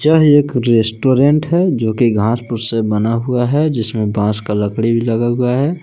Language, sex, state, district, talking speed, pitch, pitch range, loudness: Hindi, male, Jharkhand, Palamu, 185 wpm, 120 Hz, 110-140 Hz, -15 LUFS